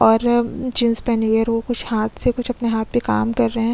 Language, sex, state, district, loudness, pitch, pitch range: Hindi, female, Chhattisgarh, Sukma, -20 LUFS, 235 Hz, 225-240 Hz